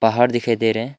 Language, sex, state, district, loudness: Hindi, male, Arunachal Pradesh, Longding, -18 LUFS